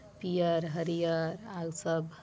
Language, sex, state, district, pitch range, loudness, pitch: Chhattisgarhi, female, Chhattisgarh, Balrampur, 165-170 Hz, -33 LUFS, 165 Hz